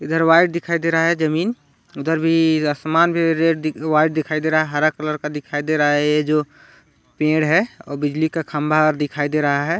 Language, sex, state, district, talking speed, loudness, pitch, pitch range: Hindi, male, Chhattisgarh, Balrampur, 225 wpm, -19 LUFS, 155 Hz, 150-165 Hz